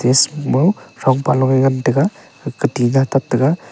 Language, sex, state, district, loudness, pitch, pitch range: Wancho, male, Arunachal Pradesh, Longding, -16 LUFS, 135 Hz, 130-145 Hz